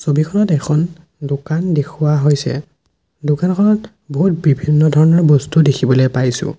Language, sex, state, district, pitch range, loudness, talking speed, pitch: Assamese, male, Assam, Sonitpur, 145-165 Hz, -15 LUFS, 110 wpm, 150 Hz